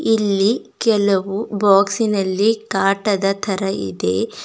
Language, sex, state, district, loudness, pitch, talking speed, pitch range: Kannada, female, Karnataka, Bidar, -18 LUFS, 200 Hz, 80 wpm, 195-210 Hz